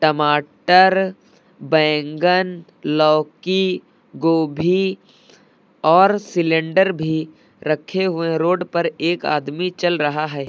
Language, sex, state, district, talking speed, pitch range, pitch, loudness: Hindi, male, Uttar Pradesh, Lucknow, 95 wpm, 155-185 Hz, 165 Hz, -18 LUFS